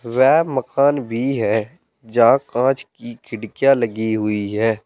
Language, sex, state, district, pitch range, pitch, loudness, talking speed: Hindi, male, Uttar Pradesh, Saharanpur, 110-135 Hz, 120 Hz, -18 LUFS, 135 wpm